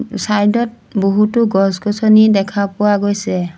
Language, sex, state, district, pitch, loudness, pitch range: Assamese, female, Assam, Sonitpur, 205 Hz, -14 LUFS, 195-215 Hz